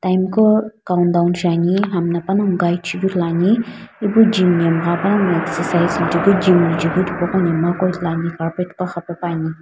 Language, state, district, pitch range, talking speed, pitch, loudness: Sumi, Nagaland, Dimapur, 170-190 Hz, 55 wpm, 175 Hz, -17 LUFS